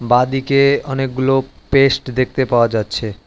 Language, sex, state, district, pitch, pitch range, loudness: Bengali, male, West Bengal, Alipurduar, 130 Hz, 120-135 Hz, -16 LUFS